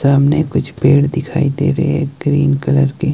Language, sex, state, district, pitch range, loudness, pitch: Hindi, male, Himachal Pradesh, Shimla, 140-150 Hz, -15 LUFS, 145 Hz